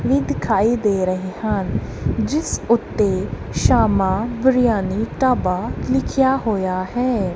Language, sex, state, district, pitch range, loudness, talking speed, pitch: Punjabi, female, Punjab, Kapurthala, 190-250 Hz, -19 LUFS, 100 wpm, 220 Hz